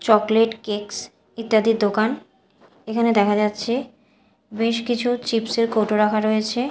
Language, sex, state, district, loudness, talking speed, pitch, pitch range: Bengali, female, Odisha, Malkangiri, -21 LUFS, 125 wpm, 225 Hz, 215-235 Hz